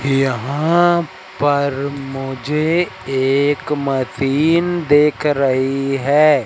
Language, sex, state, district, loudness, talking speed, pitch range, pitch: Hindi, male, Madhya Pradesh, Katni, -17 LUFS, 75 wpm, 135-155 Hz, 140 Hz